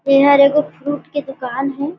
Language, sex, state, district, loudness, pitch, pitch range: Surgujia, female, Chhattisgarh, Sarguja, -16 LUFS, 280 Hz, 275-290 Hz